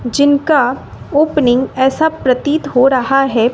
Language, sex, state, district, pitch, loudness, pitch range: Hindi, female, Bihar, West Champaran, 270 Hz, -13 LUFS, 250-290 Hz